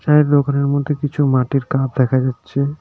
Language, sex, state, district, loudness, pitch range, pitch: Bengali, male, West Bengal, Darjeeling, -17 LUFS, 135-145 Hz, 140 Hz